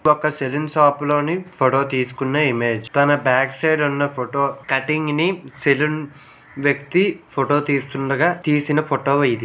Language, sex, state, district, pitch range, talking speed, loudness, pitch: Telugu, male, Andhra Pradesh, Visakhapatnam, 135-150 Hz, 135 wpm, -19 LUFS, 145 Hz